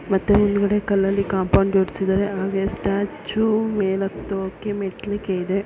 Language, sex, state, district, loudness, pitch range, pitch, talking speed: Kannada, female, Karnataka, Belgaum, -21 LUFS, 195-205 Hz, 195 Hz, 115 wpm